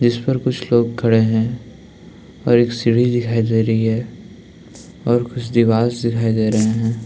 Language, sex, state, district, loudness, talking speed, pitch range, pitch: Hindi, male, Uttarakhand, Tehri Garhwal, -17 LUFS, 170 wpm, 115-120 Hz, 115 Hz